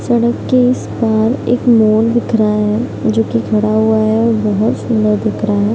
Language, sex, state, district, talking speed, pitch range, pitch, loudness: Hindi, female, Bihar, Araria, 200 wpm, 210-230 Hz, 220 Hz, -13 LUFS